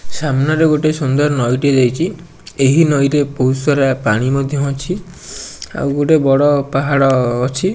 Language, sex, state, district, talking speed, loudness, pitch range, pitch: Odia, male, Odisha, Nuapada, 145 wpm, -15 LUFS, 135-150 Hz, 140 Hz